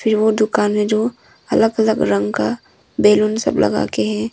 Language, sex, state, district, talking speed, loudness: Hindi, female, Arunachal Pradesh, Longding, 195 wpm, -17 LUFS